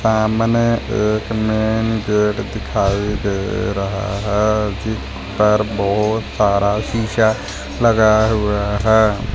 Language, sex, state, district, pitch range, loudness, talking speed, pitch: Hindi, male, Punjab, Fazilka, 100-110 Hz, -17 LUFS, 110 wpm, 105 Hz